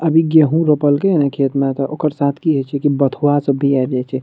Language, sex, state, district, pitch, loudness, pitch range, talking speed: Maithili, male, Bihar, Madhepura, 140 Hz, -16 LUFS, 135-150 Hz, 285 wpm